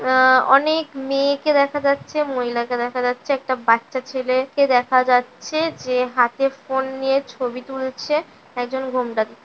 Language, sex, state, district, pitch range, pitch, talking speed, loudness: Bengali, female, West Bengal, North 24 Parganas, 250-275 Hz, 260 Hz, 125 wpm, -20 LUFS